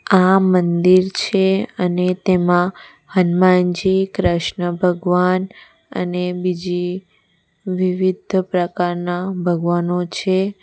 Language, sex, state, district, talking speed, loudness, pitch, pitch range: Gujarati, female, Gujarat, Valsad, 80 wpm, -18 LUFS, 180 Hz, 180-190 Hz